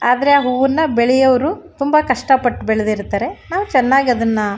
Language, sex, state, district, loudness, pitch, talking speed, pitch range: Kannada, female, Karnataka, Shimoga, -15 LUFS, 260 Hz, 145 wpm, 240-285 Hz